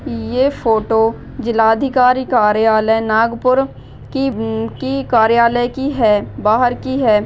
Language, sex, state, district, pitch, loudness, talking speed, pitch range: Hindi, female, Maharashtra, Nagpur, 235 Hz, -15 LUFS, 115 wpm, 225-260 Hz